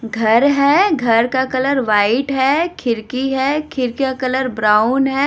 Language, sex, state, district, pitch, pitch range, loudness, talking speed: Hindi, female, Odisha, Nuapada, 260 Hz, 230-275 Hz, -16 LUFS, 160 wpm